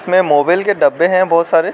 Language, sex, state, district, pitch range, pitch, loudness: Hindi, male, Arunachal Pradesh, Lower Dibang Valley, 165-185 Hz, 175 Hz, -13 LUFS